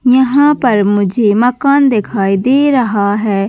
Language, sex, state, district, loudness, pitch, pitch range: Hindi, female, Chhattisgarh, Bastar, -11 LUFS, 240 Hz, 205-265 Hz